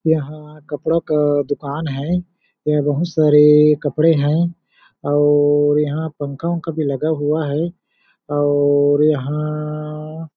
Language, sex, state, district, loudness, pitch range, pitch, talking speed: Hindi, male, Chhattisgarh, Balrampur, -18 LUFS, 145-160 Hz, 150 Hz, 110 wpm